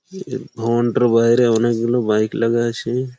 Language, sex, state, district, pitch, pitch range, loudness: Bengali, male, West Bengal, Malda, 120 Hz, 115-125 Hz, -17 LUFS